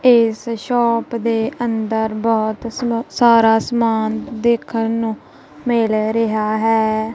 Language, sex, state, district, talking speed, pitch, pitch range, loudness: Punjabi, female, Punjab, Kapurthala, 100 wpm, 225 Hz, 220-235 Hz, -17 LUFS